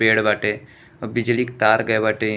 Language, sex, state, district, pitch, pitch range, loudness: Bhojpuri, male, Uttar Pradesh, Gorakhpur, 110 Hz, 110-120 Hz, -19 LUFS